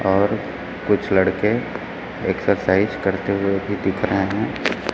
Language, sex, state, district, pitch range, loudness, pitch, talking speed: Hindi, male, Chhattisgarh, Raipur, 95-100 Hz, -21 LUFS, 95 Hz, 120 wpm